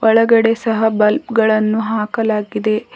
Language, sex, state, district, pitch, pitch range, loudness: Kannada, female, Karnataka, Bidar, 220 Hz, 215-225 Hz, -15 LUFS